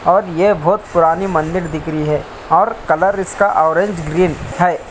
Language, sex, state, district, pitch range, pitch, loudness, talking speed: Hindi, male, Bihar, Samastipur, 155-195 Hz, 175 Hz, -15 LUFS, 170 wpm